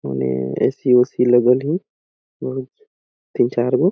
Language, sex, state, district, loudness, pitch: Awadhi, male, Chhattisgarh, Balrampur, -18 LUFS, 125 Hz